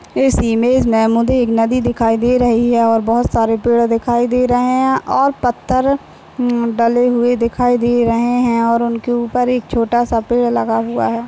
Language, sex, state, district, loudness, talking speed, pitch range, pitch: Hindi, female, Maharashtra, Nagpur, -15 LUFS, 190 wpm, 230-245 Hz, 240 Hz